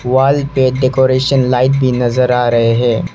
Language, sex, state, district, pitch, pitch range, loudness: Hindi, male, Arunachal Pradesh, Lower Dibang Valley, 130 Hz, 125-130 Hz, -13 LUFS